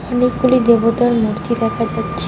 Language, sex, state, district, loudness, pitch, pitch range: Bengali, female, West Bengal, Alipurduar, -15 LUFS, 235 Hz, 230-245 Hz